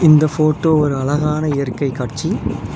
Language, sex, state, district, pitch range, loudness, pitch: Tamil, male, Tamil Nadu, Nilgiris, 140-155 Hz, -17 LUFS, 150 Hz